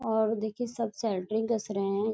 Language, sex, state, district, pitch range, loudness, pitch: Hindi, female, Bihar, East Champaran, 210-225 Hz, -31 LUFS, 220 Hz